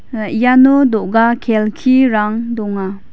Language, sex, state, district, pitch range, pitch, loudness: Garo, female, Meghalaya, West Garo Hills, 210-250 Hz, 225 Hz, -13 LUFS